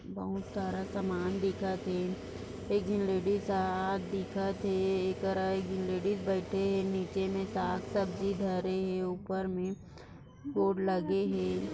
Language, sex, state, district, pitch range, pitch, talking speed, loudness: Hindi, female, Maharashtra, Dhule, 185-195 Hz, 190 Hz, 130 wpm, -33 LUFS